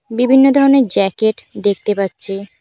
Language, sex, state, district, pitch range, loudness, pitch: Bengali, female, West Bengal, Cooch Behar, 195-265 Hz, -13 LUFS, 215 Hz